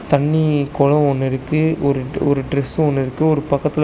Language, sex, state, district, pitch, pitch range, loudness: Tamil, male, Tamil Nadu, Chennai, 145 Hz, 140-155 Hz, -18 LUFS